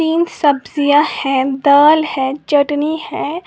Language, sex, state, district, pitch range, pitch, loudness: Hindi, female, Uttar Pradesh, Lalitpur, 280-315 Hz, 290 Hz, -14 LUFS